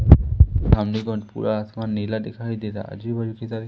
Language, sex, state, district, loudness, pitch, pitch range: Hindi, male, Madhya Pradesh, Umaria, -22 LUFS, 110 Hz, 105-115 Hz